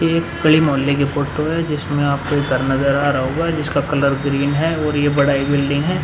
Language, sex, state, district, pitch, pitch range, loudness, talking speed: Hindi, male, Bihar, Vaishali, 145 Hz, 140-155 Hz, -17 LUFS, 260 wpm